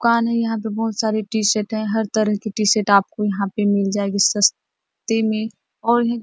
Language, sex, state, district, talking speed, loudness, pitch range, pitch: Hindi, female, Chhattisgarh, Bastar, 190 wpm, -19 LUFS, 205-225 Hz, 215 Hz